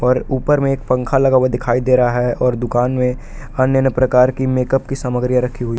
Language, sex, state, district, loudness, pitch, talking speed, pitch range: Hindi, male, Jharkhand, Palamu, -16 LUFS, 125 Hz, 240 wpm, 125-130 Hz